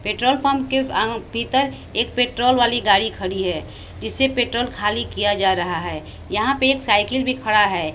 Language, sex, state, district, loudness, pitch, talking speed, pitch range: Hindi, female, Bihar, West Champaran, -19 LUFS, 235 Hz, 190 wpm, 205-260 Hz